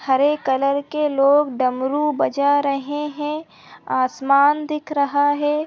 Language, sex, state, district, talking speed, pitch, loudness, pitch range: Hindi, female, Uttarakhand, Tehri Garhwal, 125 wpm, 285 Hz, -19 LUFS, 275-295 Hz